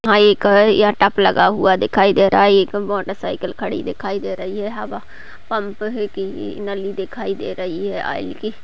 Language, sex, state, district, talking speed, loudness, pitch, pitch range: Hindi, female, Chhattisgarh, Balrampur, 200 wpm, -18 LUFS, 200 Hz, 195-210 Hz